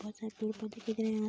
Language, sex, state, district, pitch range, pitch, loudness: Hindi, female, Bihar, Darbhanga, 215-220 Hz, 220 Hz, -38 LUFS